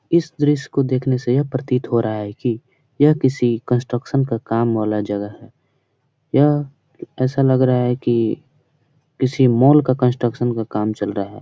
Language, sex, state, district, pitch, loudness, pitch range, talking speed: Hindi, male, Bihar, Jahanabad, 130 Hz, -18 LUFS, 115-140 Hz, 190 wpm